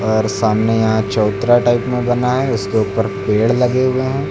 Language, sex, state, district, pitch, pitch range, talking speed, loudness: Hindi, male, Uttar Pradesh, Lucknow, 115 Hz, 110-125 Hz, 195 wpm, -16 LUFS